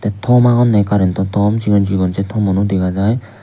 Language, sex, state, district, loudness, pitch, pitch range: Chakma, male, Tripura, Unakoti, -14 LUFS, 100 Hz, 95-110 Hz